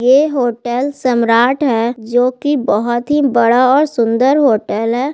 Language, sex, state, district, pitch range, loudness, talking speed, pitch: Hindi, female, Bihar, Gaya, 235-275 Hz, -14 LUFS, 165 wpm, 250 Hz